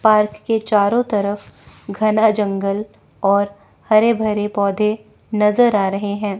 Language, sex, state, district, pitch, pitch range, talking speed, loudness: Hindi, female, Chandigarh, Chandigarh, 210 Hz, 200-215 Hz, 130 wpm, -18 LUFS